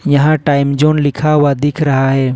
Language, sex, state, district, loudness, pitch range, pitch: Hindi, male, Jharkhand, Ranchi, -13 LUFS, 140-150 Hz, 145 Hz